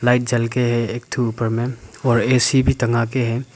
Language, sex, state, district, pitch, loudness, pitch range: Hindi, male, Arunachal Pradesh, Papum Pare, 120 Hz, -19 LUFS, 115-125 Hz